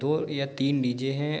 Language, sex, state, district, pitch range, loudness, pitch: Hindi, male, Jharkhand, Sahebganj, 135-150 Hz, -28 LUFS, 140 Hz